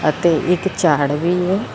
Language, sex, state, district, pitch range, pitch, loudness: Punjabi, female, Karnataka, Bangalore, 155-180 Hz, 175 Hz, -17 LUFS